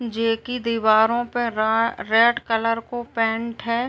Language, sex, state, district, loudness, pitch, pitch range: Hindi, female, Uttar Pradesh, Gorakhpur, -21 LUFS, 230 Hz, 225-240 Hz